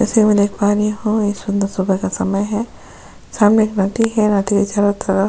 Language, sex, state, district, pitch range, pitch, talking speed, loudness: Hindi, female, Goa, North and South Goa, 200-215 Hz, 205 Hz, 240 wpm, -16 LUFS